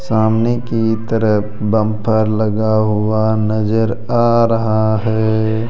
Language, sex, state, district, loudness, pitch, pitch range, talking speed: Hindi, male, Rajasthan, Jaipur, -15 LUFS, 110 Hz, 110-115 Hz, 105 wpm